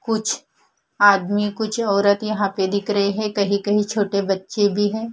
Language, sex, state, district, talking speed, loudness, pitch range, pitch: Hindi, female, Punjab, Fazilka, 165 wpm, -20 LUFS, 200-215 Hz, 205 Hz